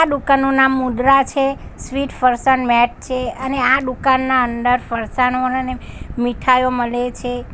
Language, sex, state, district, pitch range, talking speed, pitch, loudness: Gujarati, female, Gujarat, Valsad, 245-265 Hz, 135 wpm, 255 Hz, -17 LUFS